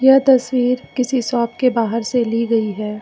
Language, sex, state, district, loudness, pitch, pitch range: Hindi, female, Jharkhand, Ranchi, -17 LUFS, 245 Hz, 230-255 Hz